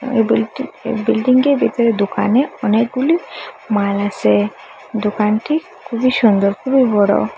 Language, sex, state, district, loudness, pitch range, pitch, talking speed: Bengali, female, Assam, Hailakandi, -16 LUFS, 205-255 Hz, 225 Hz, 120 wpm